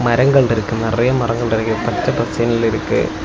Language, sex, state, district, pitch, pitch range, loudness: Tamil, male, Tamil Nadu, Kanyakumari, 115 Hz, 115-120 Hz, -16 LUFS